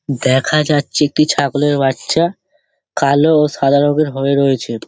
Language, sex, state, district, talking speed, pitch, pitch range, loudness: Bengali, male, West Bengal, Dakshin Dinajpur, 145 wpm, 145 Hz, 140-155 Hz, -14 LUFS